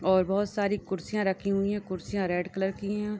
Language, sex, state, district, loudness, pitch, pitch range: Hindi, female, Uttar Pradesh, Deoria, -29 LUFS, 195 Hz, 190-205 Hz